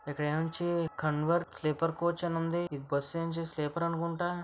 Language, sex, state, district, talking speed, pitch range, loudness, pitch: Telugu, female, Andhra Pradesh, Visakhapatnam, 160 wpm, 155-170 Hz, -33 LUFS, 165 Hz